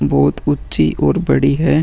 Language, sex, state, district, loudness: Hindi, female, Bihar, Vaishali, -15 LUFS